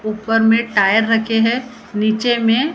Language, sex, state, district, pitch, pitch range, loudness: Hindi, female, Maharashtra, Gondia, 225 Hz, 220-235 Hz, -16 LUFS